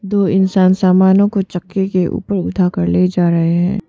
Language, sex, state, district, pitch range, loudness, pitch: Hindi, female, Arunachal Pradesh, Papum Pare, 180-195 Hz, -14 LUFS, 185 Hz